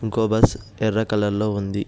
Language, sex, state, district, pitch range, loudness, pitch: Telugu, male, Telangana, Hyderabad, 105-110 Hz, -21 LUFS, 105 Hz